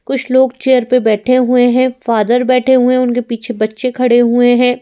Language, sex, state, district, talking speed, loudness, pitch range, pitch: Hindi, female, Madhya Pradesh, Bhopal, 200 wpm, -12 LUFS, 240-255 Hz, 250 Hz